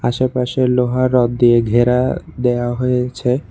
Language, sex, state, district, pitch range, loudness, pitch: Bengali, male, Tripura, West Tripura, 120-125 Hz, -16 LUFS, 125 Hz